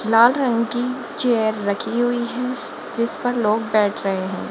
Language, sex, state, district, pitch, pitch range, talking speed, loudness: Hindi, female, Rajasthan, Jaipur, 235 Hz, 215-245 Hz, 175 wpm, -20 LUFS